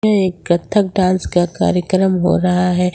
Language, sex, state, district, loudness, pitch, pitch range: Hindi, female, Jharkhand, Ranchi, -16 LUFS, 180 Hz, 180-190 Hz